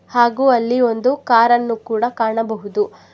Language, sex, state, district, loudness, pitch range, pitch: Kannada, female, Karnataka, Bangalore, -17 LUFS, 225-245 Hz, 235 Hz